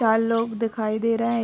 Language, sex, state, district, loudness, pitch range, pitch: Hindi, female, Uttar Pradesh, Ghazipur, -23 LUFS, 225-230 Hz, 230 Hz